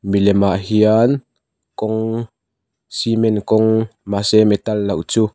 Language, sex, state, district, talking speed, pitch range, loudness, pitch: Mizo, male, Mizoram, Aizawl, 125 wpm, 100-110 Hz, -16 LUFS, 110 Hz